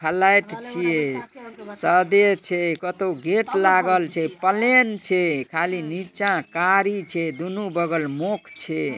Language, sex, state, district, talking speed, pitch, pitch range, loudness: Maithili, male, Bihar, Darbhanga, 120 wpm, 180 Hz, 165-200 Hz, -21 LUFS